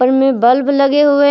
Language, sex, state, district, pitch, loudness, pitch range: Hindi, female, Jharkhand, Palamu, 275 Hz, -12 LUFS, 260-285 Hz